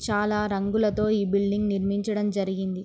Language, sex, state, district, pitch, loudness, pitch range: Telugu, female, Andhra Pradesh, Srikakulam, 205 Hz, -25 LUFS, 195-210 Hz